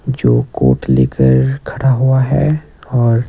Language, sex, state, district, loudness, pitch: Hindi, male, Himachal Pradesh, Shimla, -14 LUFS, 120 Hz